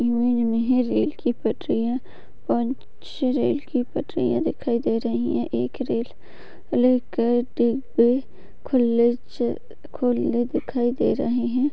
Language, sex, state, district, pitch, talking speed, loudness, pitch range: Hindi, female, Chhattisgarh, Bastar, 240 Hz, 130 wpm, -23 LUFS, 235-255 Hz